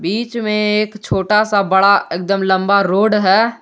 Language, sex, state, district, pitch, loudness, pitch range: Hindi, male, Jharkhand, Garhwa, 200 Hz, -15 LUFS, 190-215 Hz